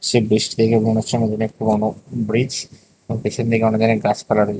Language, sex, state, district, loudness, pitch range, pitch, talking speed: Bengali, male, Tripura, West Tripura, -19 LUFS, 110-115 Hz, 110 Hz, 210 wpm